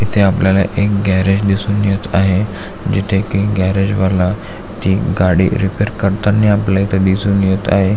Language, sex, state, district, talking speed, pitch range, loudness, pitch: Marathi, male, Maharashtra, Aurangabad, 135 wpm, 95-100 Hz, -15 LUFS, 100 Hz